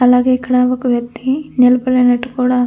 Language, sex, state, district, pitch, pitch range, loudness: Telugu, female, Andhra Pradesh, Anantapur, 250 Hz, 250-255 Hz, -14 LUFS